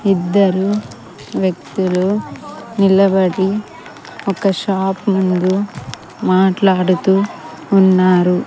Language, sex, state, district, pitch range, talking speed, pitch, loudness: Telugu, female, Andhra Pradesh, Sri Satya Sai, 185-195 Hz, 55 wpm, 190 Hz, -15 LUFS